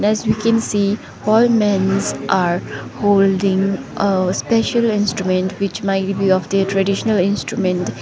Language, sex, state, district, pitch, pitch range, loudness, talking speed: English, female, Sikkim, Gangtok, 195 Hz, 190-210 Hz, -17 LUFS, 135 wpm